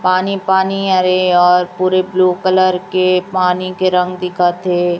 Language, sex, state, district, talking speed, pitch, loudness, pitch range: Hindi, female, Chhattisgarh, Raipur, 155 wpm, 185 Hz, -14 LUFS, 180-185 Hz